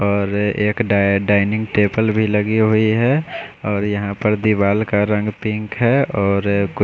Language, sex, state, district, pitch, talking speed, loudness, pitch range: Hindi, male, Odisha, Khordha, 105 Hz, 160 wpm, -17 LUFS, 100-110 Hz